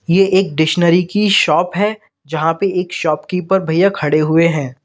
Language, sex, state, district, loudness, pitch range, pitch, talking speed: Hindi, male, Uttar Pradesh, Lalitpur, -15 LUFS, 160-190 Hz, 175 Hz, 175 wpm